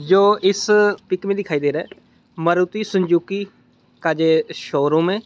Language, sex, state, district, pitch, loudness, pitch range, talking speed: Hindi, male, Bihar, Muzaffarpur, 185 Hz, -19 LUFS, 160-200 Hz, 160 wpm